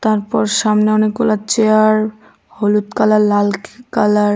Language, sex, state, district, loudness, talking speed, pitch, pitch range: Bengali, female, Tripura, West Tripura, -15 LUFS, 135 wpm, 215 Hz, 210-215 Hz